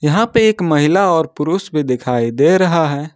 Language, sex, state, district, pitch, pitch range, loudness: Hindi, male, Jharkhand, Ranchi, 160 Hz, 145-185 Hz, -14 LUFS